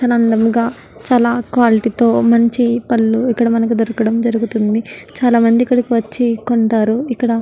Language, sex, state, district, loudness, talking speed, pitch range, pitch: Telugu, female, Andhra Pradesh, Guntur, -14 LUFS, 130 wpm, 225-240 Hz, 235 Hz